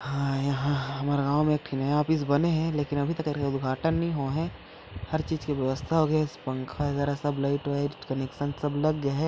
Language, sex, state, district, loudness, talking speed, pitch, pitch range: Chhattisgarhi, male, Chhattisgarh, Korba, -28 LUFS, 220 wpm, 145 Hz, 140-155 Hz